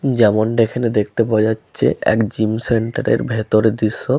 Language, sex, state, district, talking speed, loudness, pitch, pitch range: Bengali, male, West Bengal, Malda, 155 wpm, -17 LUFS, 110 Hz, 110-115 Hz